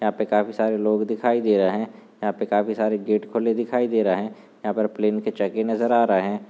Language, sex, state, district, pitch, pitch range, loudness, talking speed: Hindi, male, Maharashtra, Nagpur, 110 Hz, 105-115 Hz, -22 LUFS, 230 wpm